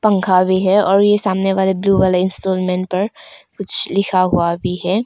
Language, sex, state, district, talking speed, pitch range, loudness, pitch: Hindi, female, Arunachal Pradesh, Longding, 190 wpm, 185-200 Hz, -16 LUFS, 190 Hz